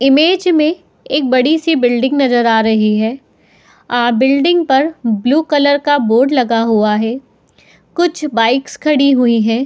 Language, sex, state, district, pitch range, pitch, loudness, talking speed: Hindi, female, Uttar Pradesh, Etah, 235-295 Hz, 265 Hz, -13 LUFS, 150 wpm